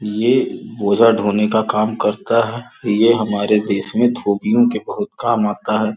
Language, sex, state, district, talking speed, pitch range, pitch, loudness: Hindi, male, Uttar Pradesh, Gorakhpur, 170 wpm, 105-120 Hz, 110 Hz, -17 LUFS